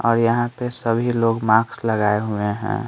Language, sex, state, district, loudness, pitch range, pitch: Hindi, male, Bihar, Patna, -20 LUFS, 110-120 Hz, 115 Hz